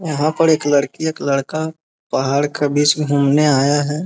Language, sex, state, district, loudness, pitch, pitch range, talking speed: Hindi, male, Bihar, East Champaran, -17 LUFS, 145 Hz, 145-155 Hz, 190 wpm